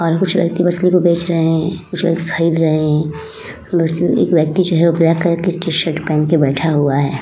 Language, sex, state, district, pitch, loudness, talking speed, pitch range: Hindi, female, Uttar Pradesh, Muzaffarnagar, 165 Hz, -15 LUFS, 225 wpm, 155-175 Hz